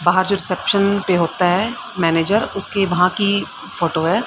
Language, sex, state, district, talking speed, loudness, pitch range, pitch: Hindi, female, Haryana, Rohtak, 170 wpm, -17 LUFS, 175-200 Hz, 185 Hz